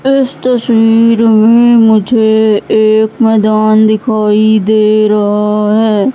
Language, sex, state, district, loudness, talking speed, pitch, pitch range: Hindi, female, Madhya Pradesh, Katni, -9 LUFS, 95 wpm, 220 Hz, 215-230 Hz